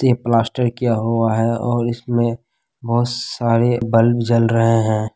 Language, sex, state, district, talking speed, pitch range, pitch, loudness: Hindi, male, Bihar, Kishanganj, 150 wpm, 115-120 Hz, 115 Hz, -18 LUFS